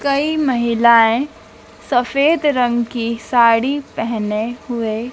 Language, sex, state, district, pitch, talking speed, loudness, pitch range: Hindi, female, Madhya Pradesh, Dhar, 240 Hz, 95 wpm, -16 LUFS, 230-275 Hz